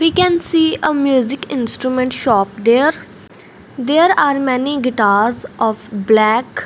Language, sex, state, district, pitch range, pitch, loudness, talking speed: English, female, Punjab, Fazilka, 225-290 Hz, 255 Hz, -15 LUFS, 135 wpm